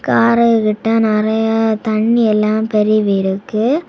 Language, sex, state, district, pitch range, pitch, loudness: Tamil, female, Tamil Nadu, Kanyakumari, 215-225 Hz, 220 Hz, -14 LUFS